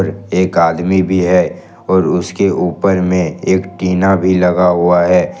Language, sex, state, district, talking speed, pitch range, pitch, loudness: Hindi, male, Jharkhand, Ranchi, 155 wpm, 90-95 Hz, 90 Hz, -13 LUFS